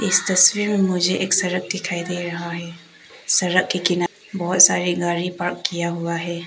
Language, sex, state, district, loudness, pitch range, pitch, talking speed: Hindi, female, Arunachal Pradesh, Papum Pare, -19 LUFS, 170-185 Hz, 180 Hz, 185 wpm